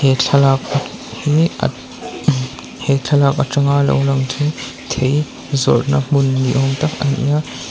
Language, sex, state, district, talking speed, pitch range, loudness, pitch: Mizo, male, Mizoram, Aizawl, 150 wpm, 135-145 Hz, -16 LUFS, 140 Hz